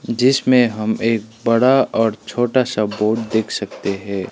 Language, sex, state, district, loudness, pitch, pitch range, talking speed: Hindi, male, Sikkim, Gangtok, -18 LUFS, 115 Hz, 110-120 Hz, 155 wpm